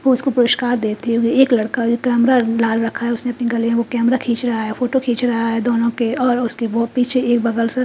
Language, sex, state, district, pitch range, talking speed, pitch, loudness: Hindi, female, Haryana, Charkhi Dadri, 230-245 Hz, 235 wpm, 235 Hz, -17 LUFS